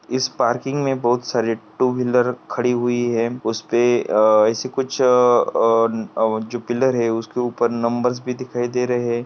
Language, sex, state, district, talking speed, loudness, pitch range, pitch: Hindi, male, Maharashtra, Pune, 180 wpm, -19 LUFS, 115-125 Hz, 120 Hz